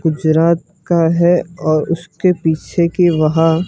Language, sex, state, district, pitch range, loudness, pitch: Hindi, male, Gujarat, Gandhinagar, 160-175 Hz, -15 LUFS, 170 Hz